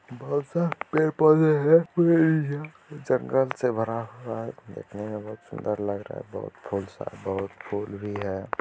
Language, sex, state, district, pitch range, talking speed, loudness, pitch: Hindi, male, Bihar, Gopalganj, 105-155 Hz, 160 wpm, -26 LUFS, 125 Hz